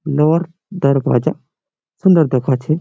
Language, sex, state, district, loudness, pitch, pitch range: Bengali, male, West Bengal, Malda, -16 LUFS, 155 Hz, 140-170 Hz